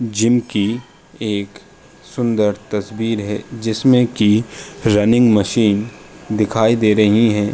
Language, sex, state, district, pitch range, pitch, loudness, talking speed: Hindi, male, Uttar Pradesh, Jalaun, 105-115 Hz, 110 Hz, -16 LUFS, 105 wpm